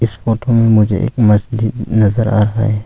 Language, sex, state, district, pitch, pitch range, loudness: Hindi, male, Arunachal Pradesh, Longding, 110 Hz, 105-115 Hz, -14 LUFS